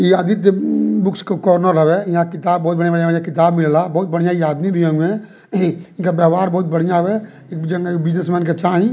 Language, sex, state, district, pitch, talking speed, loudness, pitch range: Bhojpuri, male, Bihar, Muzaffarpur, 175 Hz, 190 wpm, -16 LUFS, 165-185 Hz